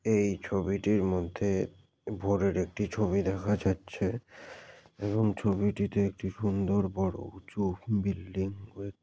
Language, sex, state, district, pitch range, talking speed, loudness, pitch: Bengali, male, West Bengal, Jalpaiguri, 95-105 Hz, 105 wpm, -31 LUFS, 100 Hz